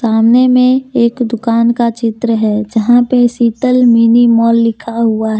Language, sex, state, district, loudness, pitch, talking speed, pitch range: Hindi, female, Jharkhand, Deoghar, -11 LUFS, 235 Hz, 165 wpm, 230-245 Hz